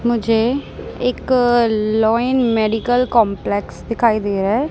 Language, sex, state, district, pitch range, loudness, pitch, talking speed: Hindi, male, Punjab, Kapurthala, 215-245 Hz, -17 LUFS, 230 Hz, 125 wpm